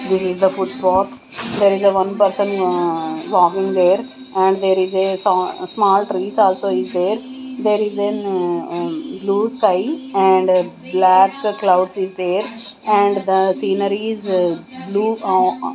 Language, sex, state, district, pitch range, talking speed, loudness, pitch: English, female, Punjab, Kapurthala, 185-205 Hz, 145 wpm, -17 LUFS, 195 Hz